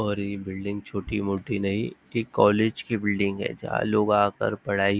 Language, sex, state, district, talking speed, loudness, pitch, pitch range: Hindi, male, Maharashtra, Nagpur, 180 wpm, -26 LUFS, 100 Hz, 100-105 Hz